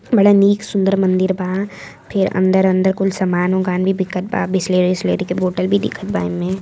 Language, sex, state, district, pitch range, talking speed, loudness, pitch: Hindi, female, Uttar Pradesh, Varanasi, 185-195 Hz, 190 wpm, -17 LUFS, 190 Hz